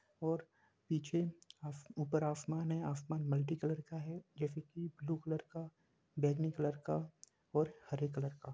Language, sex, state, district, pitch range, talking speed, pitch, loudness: Hindi, male, Jharkhand, Jamtara, 145-165 Hz, 140 wpm, 155 Hz, -40 LUFS